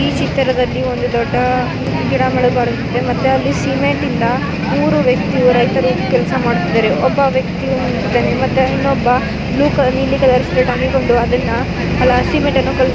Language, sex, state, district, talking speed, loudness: Kannada, female, Karnataka, Mysore, 135 wpm, -14 LUFS